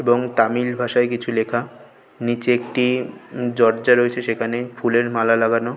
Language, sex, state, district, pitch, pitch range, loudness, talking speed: Bengali, male, West Bengal, North 24 Parganas, 120 Hz, 115-125 Hz, -20 LUFS, 135 wpm